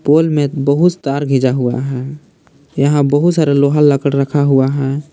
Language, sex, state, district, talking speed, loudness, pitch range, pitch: Hindi, male, Jharkhand, Palamu, 185 wpm, -14 LUFS, 135-150 Hz, 140 Hz